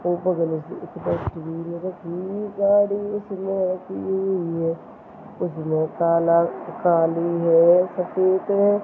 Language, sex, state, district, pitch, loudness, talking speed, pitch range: Hindi, male, Chhattisgarh, Balrampur, 175 Hz, -22 LUFS, 35 wpm, 165-195 Hz